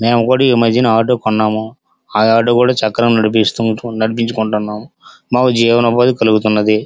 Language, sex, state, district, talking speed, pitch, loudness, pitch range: Telugu, male, Andhra Pradesh, Srikakulam, 120 wpm, 115 Hz, -13 LUFS, 110-120 Hz